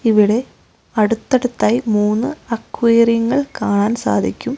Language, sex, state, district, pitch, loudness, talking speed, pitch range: Malayalam, female, Kerala, Kozhikode, 230 Hz, -17 LUFS, 80 wpm, 215-250 Hz